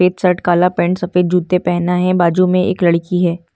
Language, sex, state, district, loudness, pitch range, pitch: Hindi, female, Delhi, New Delhi, -15 LUFS, 175-180 Hz, 180 Hz